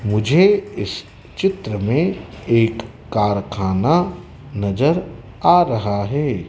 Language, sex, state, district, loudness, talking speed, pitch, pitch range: Hindi, male, Madhya Pradesh, Dhar, -18 LUFS, 90 wpm, 115 Hz, 105-170 Hz